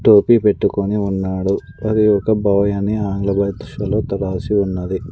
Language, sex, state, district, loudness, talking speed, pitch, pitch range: Telugu, male, Andhra Pradesh, Sri Satya Sai, -17 LUFS, 130 wpm, 100 Hz, 100-105 Hz